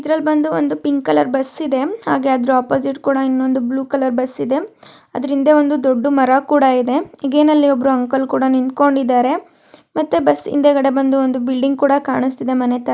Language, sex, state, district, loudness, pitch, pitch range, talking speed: Kannada, male, Karnataka, Shimoga, -16 LUFS, 270 Hz, 260-285 Hz, 180 wpm